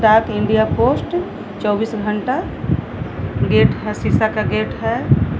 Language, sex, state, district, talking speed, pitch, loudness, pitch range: Hindi, female, Jharkhand, Palamu, 120 wpm, 220 Hz, -18 LUFS, 210-245 Hz